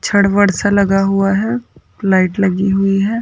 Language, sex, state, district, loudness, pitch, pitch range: Hindi, female, Uttarakhand, Uttarkashi, -14 LUFS, 195 Hz, 195-205 Hz